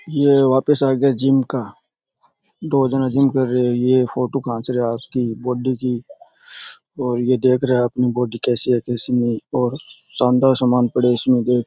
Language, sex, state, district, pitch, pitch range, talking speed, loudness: Rajasthani, male, Rajasthan, Churu, 125 Hz, 120-135 Hz, 195 wpm, -18 LUFS